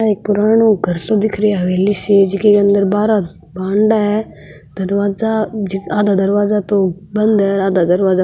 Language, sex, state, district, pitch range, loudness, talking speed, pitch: Marwari, female, Rajasthan, Nagaur, 190-210 Hz, -14 LUFS, 175 wpm, 200 Hz